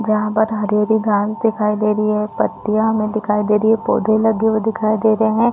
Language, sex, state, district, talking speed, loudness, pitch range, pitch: Hindi, female, Chhattisgarh, Rajnandgaon, 250 wpm, -17 LUFS, 210-220 Hz, 215 Hz